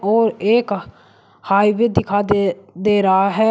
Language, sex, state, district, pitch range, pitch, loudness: Hindi, male, Uttar Pradesh, Shamli, 195-220 Hz, 205 Hz, -17 LUFS